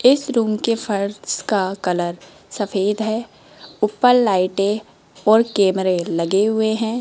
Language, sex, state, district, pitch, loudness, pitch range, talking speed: Hindi, female, Rajasthan, Jaipur, 210 Hz, -19 LUFS, 190-225 Hz, 130 wpm